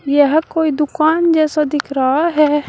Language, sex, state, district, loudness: Hindi, female, Uttar Pradesh, Shamli, -15 LUFS